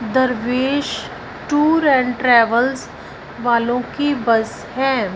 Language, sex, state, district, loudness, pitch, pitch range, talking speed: Hindi, female, Punjab, Fazilka, -17 LUFS, 250 Hz, 235-270 Hz, 95 wpm